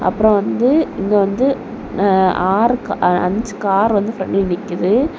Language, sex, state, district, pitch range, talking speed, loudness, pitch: Tamil, female, Tamil Nadu, Kanyakumari, 190-225 Hz, 115 wpm, -16 LUFS, 200 Hz